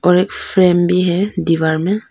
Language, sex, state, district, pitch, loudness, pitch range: Hindi, female, Arunachal Pradesh, Papum Pare, 180 Hz, -15 LUFS, 175-185 Hz